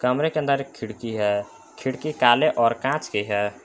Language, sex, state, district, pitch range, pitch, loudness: Hindi, male, Jharkhand, Palamu, 105-140 Hz, 120 Hz, -23 LUFS